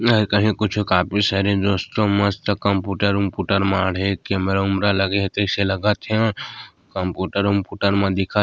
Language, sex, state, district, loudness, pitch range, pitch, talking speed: Chhattisgarhi, male, Chhattisgarh, Sarguja, -20 LUFS, 95-105 Hz, 100 Hz, 130 wpm